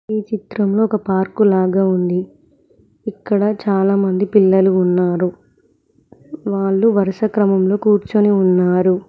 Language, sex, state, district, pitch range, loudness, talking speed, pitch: Telugu, female, Telangana, Mahabubabad, 185-210 Hz, -16 LUFS, 100 wpm, 195 Hz